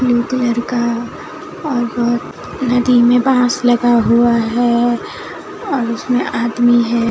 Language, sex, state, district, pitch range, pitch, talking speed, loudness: Hindi, female, Bihar, Katihar, 235-250 Hz, 240 Hz, 125 wpm, -15 LUFS